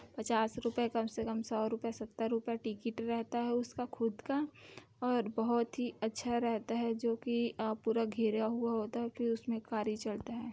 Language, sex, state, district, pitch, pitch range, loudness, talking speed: Hindi, female, Chhattisgarh, Bilaspur, 230 Hz, 225-235 Hz, -36 LUFS, 190 wpm